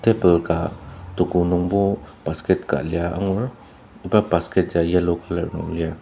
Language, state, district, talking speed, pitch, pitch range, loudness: Ao, Nagaland, Dimapur, 150 wpm, 90 Hz, 85-95 Hz, -21 LUFS